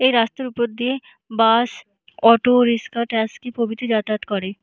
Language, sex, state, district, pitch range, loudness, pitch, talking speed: Bengali, female, West Bengal, North 24 Parganas, 220-245 Hz, -19 LUFS, 230 Hz, 145 wpm